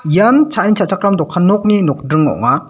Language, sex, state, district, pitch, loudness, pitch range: Garo, male, Meghalaya, West Garo Hills, 195 Hz, -13 LUFS, 160-210 Hz